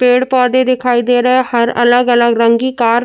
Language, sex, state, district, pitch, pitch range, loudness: Hindi, female, Uttar Pradesh, Jyotiba Phule Nagar, 245 Hz, 235-250 Hz, -12 LUFS